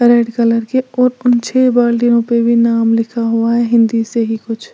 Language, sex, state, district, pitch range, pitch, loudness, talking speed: Hindi, female, Uttar Pradesh, Lalitpur, 230-240 Hz, 235 Hz, -13 LUFS, 215 wpm